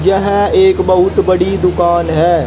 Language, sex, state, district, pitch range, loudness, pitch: Hindi, female, Haryana, Jhajjar, 175-195 Hz, -11 LUFS, 185 Hz